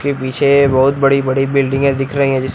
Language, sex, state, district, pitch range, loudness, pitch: Hindi, male, Uttar Pradesh, Lucknow, 135-140 Hz, -14 LUFS, 135 Hz